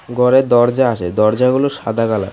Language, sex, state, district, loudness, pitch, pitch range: Bengali, male, Tripura, West Tripura, -14 LUFS, 120 Hz, 110-130 Hz